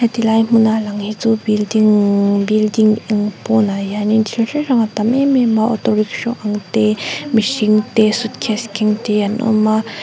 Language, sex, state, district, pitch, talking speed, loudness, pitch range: Mizo, female, Mizoram, Aizawl, 215 Hz, 185 wpm, -15 LUFS, 210-225 Hz